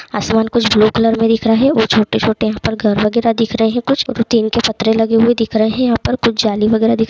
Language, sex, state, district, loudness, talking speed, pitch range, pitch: Hindi, male, West Bengal, Kolkata, -14 LUFS, 280 wpm, 220-230 Hz, 225 Hz